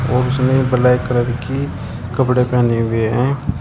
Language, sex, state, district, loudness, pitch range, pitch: Hindi, male, Uttar Pradesh, Shamli, -17 LUFS, 115-130 Hz, 125 Hz